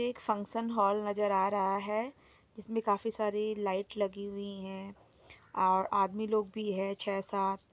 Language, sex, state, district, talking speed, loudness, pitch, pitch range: Hindi, female, Jharkhand, Sahebganj, 155 wpm, -33 LUFS, 200 Hz, 195-215 Hz